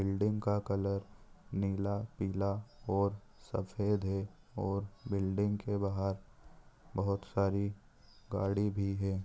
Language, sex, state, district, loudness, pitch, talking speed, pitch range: Hindi, male, Maharashtra, Chandrapur, -36 LUFS, 100 Hz, 110 wpm, 100-105 Hz